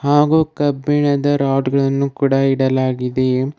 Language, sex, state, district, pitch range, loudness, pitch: Kannada, male, Karnataka, Bidar, 130-145 Hz, -16 LUFS, 140 Hz